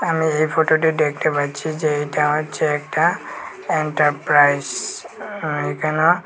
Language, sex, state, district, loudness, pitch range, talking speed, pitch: Bengali, male, Tripura, West Tripura, -19 LUFS, 150-160 Hz, 115 wpm, 155 Hz